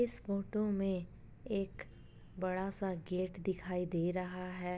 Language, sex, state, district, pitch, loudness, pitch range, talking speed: Hindi, female, Jharkhand, Jamtara, 185 Hz, -38 LUFS, 180-195 Hz, 90 wpm